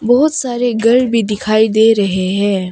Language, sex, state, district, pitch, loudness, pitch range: Hindi, female, Arunachal Pradesh, Longding, 220 Hz, -13 LUFS, 205-245 Hz